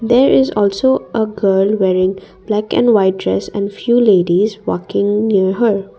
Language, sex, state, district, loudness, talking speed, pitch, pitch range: English, female, Assam, Kamrup Metropolitan, -14 LUFS, 160 wpm, 200 Hz, 190-220 Hz